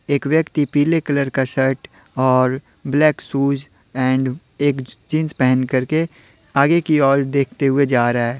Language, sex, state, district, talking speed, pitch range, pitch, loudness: Hindi, male, Jharkhand, Deoghar, 165 wpm, 130-145 Hz, 135 Hz, -18 LUFS